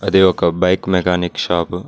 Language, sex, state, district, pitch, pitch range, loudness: Telugu, male, Telangana, Mahabubabad, 90 Hz, 90-95 Hz, -16 LUFS